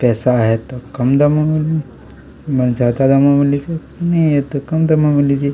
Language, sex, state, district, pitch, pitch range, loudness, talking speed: Hindi, male, Chhattisgarh, Kabirdham, 140 Hz, 125-155 Hz, -15 LUFS, 85 wpm